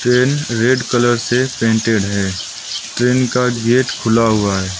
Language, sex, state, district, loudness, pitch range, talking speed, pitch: Hindi, male, Arunachal Pradesh, Lower Dibang Valley, -16 LUFS, 110-125 Hz, 150 wpm, 120 Hz